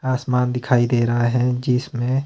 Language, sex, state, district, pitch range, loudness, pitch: Hindi, male, Himachal Pradesh, Shimla, 120-125 Hz, -20 LUFS, 125 Hz